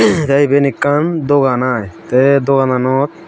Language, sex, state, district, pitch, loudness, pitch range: Chakma, male, Tripura, Dhalai, 140 Hz, -13 LUFS, 130-145 Hz